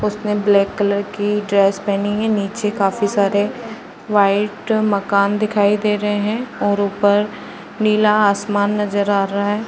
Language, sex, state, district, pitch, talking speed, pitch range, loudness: Hindi, female, Uttar Pradesh, Varanasi, 205 Hz, 150 wpm, 200-210 Hz, -17 LUFS